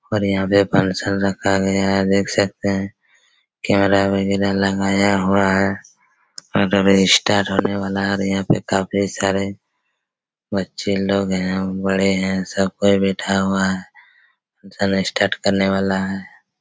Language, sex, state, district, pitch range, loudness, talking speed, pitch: Hindi, male, Chhattisgarh, Raigarh, 95-100 Hz, -18 LUFS, 150 wpm, 95 Hz